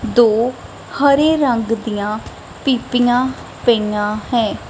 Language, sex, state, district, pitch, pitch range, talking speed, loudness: Punjabi, female, Punjab, Kapurthala, 240 Hz, 220-255 Hz, 90 wpm, -17 LUFS